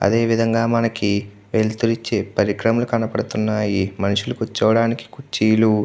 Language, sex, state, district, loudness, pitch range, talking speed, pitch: Telugu, male, Andhra Pradesh, Krishna, -20 LUFS, 105-115 Hz, 115 wpm, 110 Hz